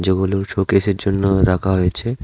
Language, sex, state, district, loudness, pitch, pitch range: Bengali, male, Tripura, West Tripura, -17 LUFS, 95 Hz, 95-100 Hz